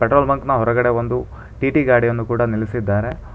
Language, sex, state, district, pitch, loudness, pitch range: Kannada, male, Karnataka, Bangalore, 120 Hz, -18 LUFS, 115-130 Hz